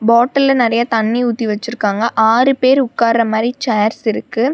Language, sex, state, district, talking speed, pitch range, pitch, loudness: Tamil, female, Tamil Nadu, Namakkal, 145 wpm, 220-245 Hz, 235 Hz, -14 LUFS